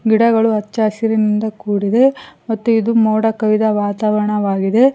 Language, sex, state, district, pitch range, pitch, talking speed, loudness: Kannada, female, Karnataka, Koppal, 210-225 Hz, 220 Hz, 95 wpm, -15 LUFS